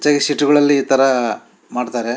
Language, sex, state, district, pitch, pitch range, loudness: Kannada, male, Karnataka, Shimoga, 135 Hz, 125-145 Hz, -15 LUFS